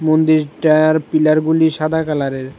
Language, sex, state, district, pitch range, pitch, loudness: Bengali, male, Tripura, West Tripura, 150-155 Hz, 155 Hz, -15 LUFS